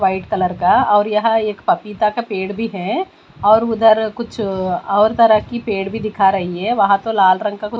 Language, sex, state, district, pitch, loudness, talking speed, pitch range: Hindi, female, Bihar, West Champaran, 210 Hz, -16 LUFS, 215 wpm, 195-225 Hz